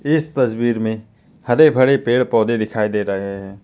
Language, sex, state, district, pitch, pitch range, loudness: Hindi, male, West Bengal, Alipurduar, 115 Hz, 105-130 Hz, -17 LUFS